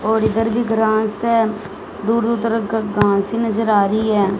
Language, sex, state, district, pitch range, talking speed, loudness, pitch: Hindi, female, Punjab, Fazilka, 205-225 Hz, 190 wpm, -18 LUFS, 220 Hz